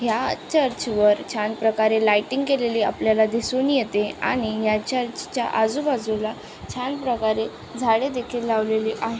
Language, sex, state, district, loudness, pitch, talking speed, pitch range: Marathi, female, Maharashtra, Aurangabad, -22 LUFS, 225 Hz, 135 wpm, 220-255 Hz